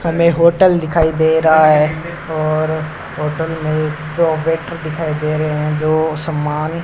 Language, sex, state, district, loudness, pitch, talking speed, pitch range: Hindi, male, Rajasthan, Bikaner, -16 LUFS, 160 Hz, 160 wpm, 155-165 Hz